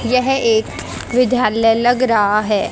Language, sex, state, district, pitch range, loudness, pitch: Hindi, female, Haryana, Jhajjar, 215-250 Hz, -15 LUFS, 230 Hz